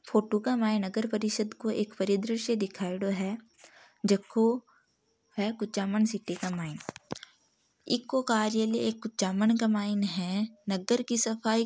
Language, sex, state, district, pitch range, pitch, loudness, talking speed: Marwari, female, Rajasthan, Nagaur, 200-225 Hz, 215 Hz, -30 LUFS, 145 wpm